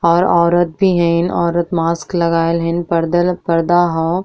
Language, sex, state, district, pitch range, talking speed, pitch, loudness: Bhojpuri, female, Uttar Pradesh, Deoria, 170-175 Hz, 155 wpm, 170 Hz, -15 LUFS